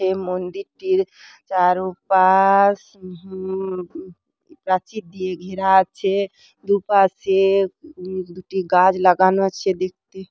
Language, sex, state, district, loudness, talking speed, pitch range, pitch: Bengali, female, West Bengal, Dakshin Dinajpur, -19 LUFS, 80 wpm, 185-195 Hz, 190 Hz